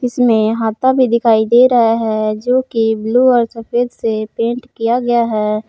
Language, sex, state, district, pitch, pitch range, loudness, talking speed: Hindi, female, Jharkhand, Palamu, 230 Hz, 220-245 Hz, -14 LUFS, 180 wpm